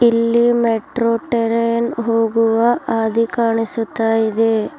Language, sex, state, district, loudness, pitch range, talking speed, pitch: Kannada, female, Karnataka, Bidar, -17 LUFS, 225-235 Hz, 90 wpm, 230 Hz